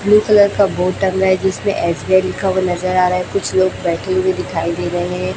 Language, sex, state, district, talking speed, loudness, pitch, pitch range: Hindi, female, Chhattisgarh, Raipur, 245 wpm, -16 LUFS, 185 Hz, 180-190 Hz